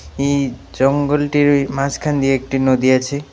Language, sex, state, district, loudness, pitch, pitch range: Bengali, male, West Bengal, Alipurduar, -17 LUFS, 140 Hz, 135-145 Hz